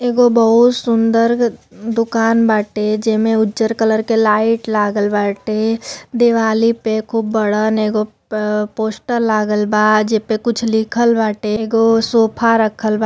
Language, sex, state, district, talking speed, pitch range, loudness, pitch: Bhojpuri, female, Uttar Pradesh, Deoria, 140 wpm, 215-230 Hz, -15 LUFS, 220 Hz